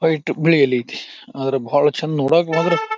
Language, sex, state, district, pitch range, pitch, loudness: Kannada, male, Karnataka, Bijapur, 135-165 Hz, 155 Hz, -18 LUFS